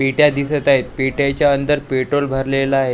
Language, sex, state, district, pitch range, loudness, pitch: Marathi, male, Maharashtra, Gondia, 135-145 Hz, -17 LUFS, 140 Hz